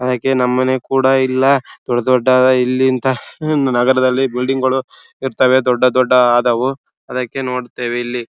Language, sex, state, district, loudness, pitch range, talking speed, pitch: Kannada, male, Karnataka, Bellary, -15 LUFS, 125-130 Hz, 125 wpm, 130 Hz